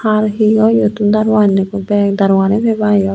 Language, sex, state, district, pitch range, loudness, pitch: Chakma, female, Tripura, Unakoti, 200-215 Hz, -13 LUFS, 210 Hz